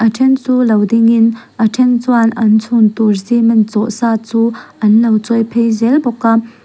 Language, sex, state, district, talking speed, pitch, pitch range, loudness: Mizo, female, Mizoram, Aizawl, 190 wpm, 230 Hz, 220-235 Hz, -12 LUFS